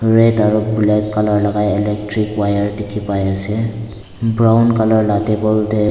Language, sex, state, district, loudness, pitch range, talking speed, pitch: Nagamese, male, Nagaland, Dimapur, -15 LUFS, 105-110 Hz, 140 wpm, 105 Hz